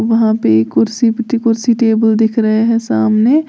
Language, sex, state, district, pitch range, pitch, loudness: Hindi, female, Uttar Pradesh, Lalitpur, 220-235 Hz, 225 Hz, -13 LUFS